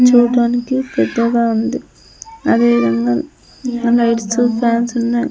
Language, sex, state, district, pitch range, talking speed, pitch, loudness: Telugu, female, Andhra Pradesh, Sri Satya Sai, 230-245 Hz, 90 wpm, 235 Hz, -15 LUFS